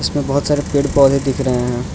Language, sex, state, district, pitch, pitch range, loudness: Hindi, male, Arunachal Pradesh, Lower Dibang Valley, 140 Hz, 130-145 Hz, -16 LUFS